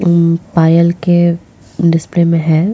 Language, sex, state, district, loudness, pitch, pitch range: Hindi, female, Goa, North and South Goa, -12 LUFS, 170 Hz, 165-175 Hz